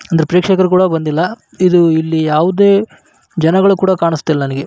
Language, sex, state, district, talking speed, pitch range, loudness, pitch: Kannada, male, Karnataka, Raichur, 140 wpm, 160-185 Hz, -12 LUFS, 170 Hz